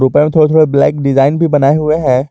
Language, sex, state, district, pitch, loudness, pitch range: Hindi, male, Jharkhand, Garhwa, 145 Hz, -11 LUFS, 135-155 Hz